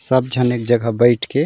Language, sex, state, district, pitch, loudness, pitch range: Chhattisgarhi, male, Chhattisgarh, Raigarh, 120 Hz, -16 LUFS, 120-130 Hz